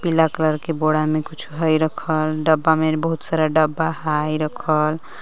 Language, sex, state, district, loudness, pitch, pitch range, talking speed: Magahi, female, Jharkhand, Palamu, -20 LUFS, 155 Hz, 155-160 Hz, 175 wpm